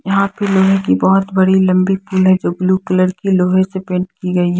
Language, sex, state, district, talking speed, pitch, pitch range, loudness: Hindi, female, Haryana, Jhajjar, 250 wpm, 185 Hz, 185-190 Hz, -14 LUFS